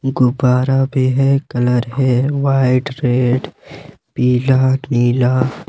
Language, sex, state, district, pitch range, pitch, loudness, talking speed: Hindi, male, Jharkhand, Ranchi, 125-135 Hz, 130 Hz, -15 LUFS, 95 wpm